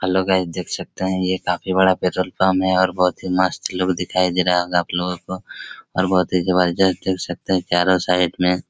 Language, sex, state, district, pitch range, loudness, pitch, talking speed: Hindi, male, Chhattisgarh, Raigarh, 90-95 Hz, -19 LUFS, 90 Hz, 220 wpm